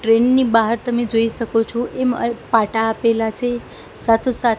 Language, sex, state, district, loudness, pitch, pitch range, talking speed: Gujarati, female, Gujarat, Gandhinagar, -18 LUFS, 230 Hz, 225-240 Hz, 170 wpm